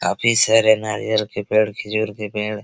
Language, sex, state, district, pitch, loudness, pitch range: Hindi, male, Bihar, Araria, 110 Hz, -19 LUFS, 105-110 Hz